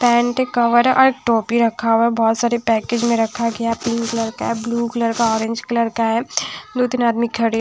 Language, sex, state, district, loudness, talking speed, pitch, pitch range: Hindi, female, Odisha, Sambalpur, -18 LUFS, 235 wpm, 230 Hz, 230-235 Hz